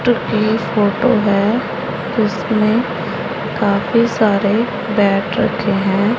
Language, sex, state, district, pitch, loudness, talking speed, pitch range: Hindi, female, Punjab, Pathankot, 215 Hz, -16 LUFS, 75 wpm, 200-230 Hz